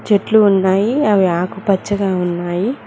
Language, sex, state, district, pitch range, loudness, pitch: Telugu, female, Telangana, Mahabubabad, 185-210 Hz, -15 LUFS, 195 Hz